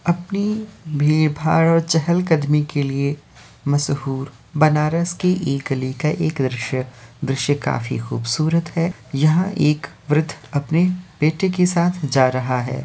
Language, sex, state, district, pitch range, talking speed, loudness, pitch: Hindi, male, Uttar Pradesh, Varanasi, 140-165 Hz, 145 wpm, -20 LUFS, 150 Hz